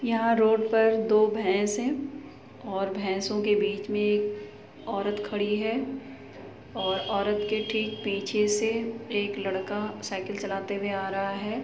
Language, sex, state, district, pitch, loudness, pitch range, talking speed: Hindi, female, Uttar Pradesh, Muzaffarnagar, 210 Hz, -27 LUFS, 200-220 Hz, 150 wpm